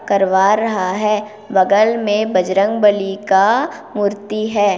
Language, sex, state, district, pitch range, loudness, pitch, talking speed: Hindi, female, Chhattisgarh, Kabirdham, 195-215 Hz, -16 LUFS, 205 Hz, 115 wpm